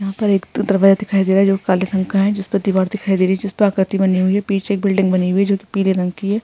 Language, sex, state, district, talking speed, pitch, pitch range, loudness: Hindi, female, Rajasthan, Nagaur, 345 wpm, 195 Hz, 190-200 Hz, -17 LUFS